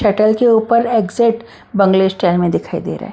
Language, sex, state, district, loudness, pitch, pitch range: Hindi, female, Bihar, Patna, -14 LUFS, 215 Hz, 190-230 Hz